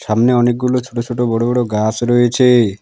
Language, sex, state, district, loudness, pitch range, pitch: Bengali, male, West Bengal, Alipurduar, -15 LUFS, 115-125 Hz, 120 Hz